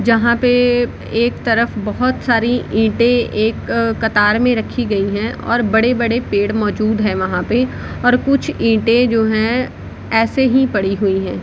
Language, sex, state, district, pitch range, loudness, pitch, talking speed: Hindi, female, Bihar, Samastipur, 215-245 Hz, -16 LUFS, 230 Hz, 160 wpm